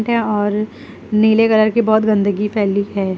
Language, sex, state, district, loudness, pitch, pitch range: Hindi, female, Uttar Pradesh, Lucknow, -16 LUFS, 215 Hz, 205-220 Hz